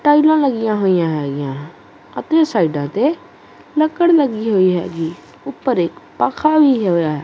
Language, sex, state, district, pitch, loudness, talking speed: Punjabi, male, Punjab, Kapurthala, 210 Hz, -16 LUFS, 130 wpm